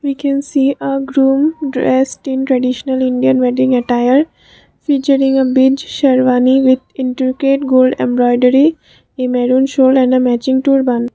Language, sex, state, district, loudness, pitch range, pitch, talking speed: English, female, Assam, Kamrup Metropolitan, -13 LUFS, 255-275 Hz, 260 Hz, 145 wpm